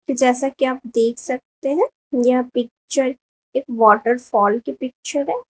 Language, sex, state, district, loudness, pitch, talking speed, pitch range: Hindi, female, Uttar Pradesh, Lalitpur, -20 LUFS, 255 Hz, 140 wpm, 235-275 Hz